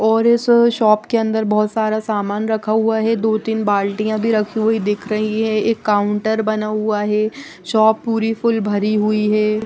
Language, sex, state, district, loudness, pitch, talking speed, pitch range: Hindi, female, Odisha, Nuapada, -17 LUFS, 215 Hz, 195 wpm, 215-225 Hz